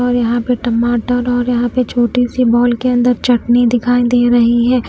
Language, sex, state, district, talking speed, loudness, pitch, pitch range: Hindi, female, Punjab, Pathankot, 210 wpm, -13 LUFS, 245 Hz, 240-245 Hz